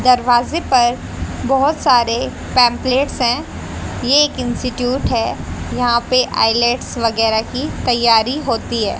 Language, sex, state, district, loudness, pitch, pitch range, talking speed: Hindi, female, Haryana, Jhajjar, -16 LUFS, 245 Hz, 235-260 Hz, 120 wpm